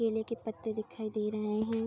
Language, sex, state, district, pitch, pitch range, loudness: Hindi, female, Bihar, Vaishali, 220 Hz, 215-225 Hz, -35 LUFS